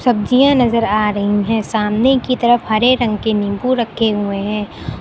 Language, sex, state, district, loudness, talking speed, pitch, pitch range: Hindi, female, Uttar Pradesh, Lucknow, -15 LUFS, 180 wpm, 225 Hz, 210-245 Hz